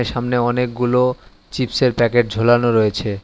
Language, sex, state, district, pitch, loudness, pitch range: Bengali, male, West Bengal, Alipurduar, 120 Hz, -17 LUFS, 110-125 Hz